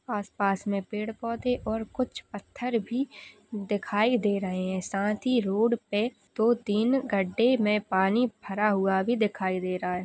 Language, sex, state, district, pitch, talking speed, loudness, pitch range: Hindi, female, Chhattisgarh, Raigarh, 210 Hz, 165 wpm, -27 LUFS, 195-235 Hz